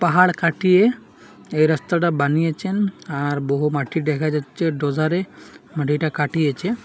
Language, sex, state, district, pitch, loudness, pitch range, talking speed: Bengali, male, Assam, Hailakandi, 155 Hz, -20 LUFS, 145-180 Hz, 115 wpm